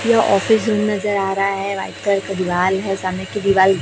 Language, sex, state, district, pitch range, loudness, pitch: Hindi, female, Chhattisgarh, Raipur, 190-205 Hz, -18 LUFS, 195 Hz